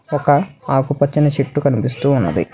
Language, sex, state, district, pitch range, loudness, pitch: Telugu, male, Telangana, Hyderabad, 140-145 Hz, -17 LUFS, 145 Hz